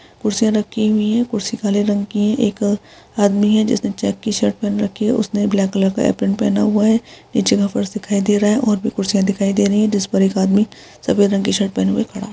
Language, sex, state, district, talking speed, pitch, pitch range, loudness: Hindi, female, Chhattisgarh, Sukma, 260 wpm, 210 Hz, 200-215 Hz, -17 LUFS